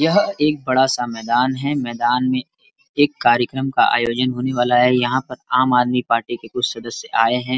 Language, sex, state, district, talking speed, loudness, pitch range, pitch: Hindi, male, Uttar Pradesh, Varanasi, 200 wpm, -18 LUFS, 120-130 Hz, 125 Hz